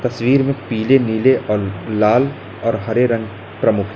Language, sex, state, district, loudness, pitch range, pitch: Hindi, male, Uttar Pradesh, Lalitpur, -17 LUFS, 105-130 Hz, 115 Hz